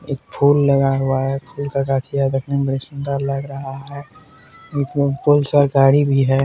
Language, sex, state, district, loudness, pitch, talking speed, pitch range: Hindi, male, Bihar, Purnia, -18 LUFS, 140 Hz, 175 wpm, 135-140 Hz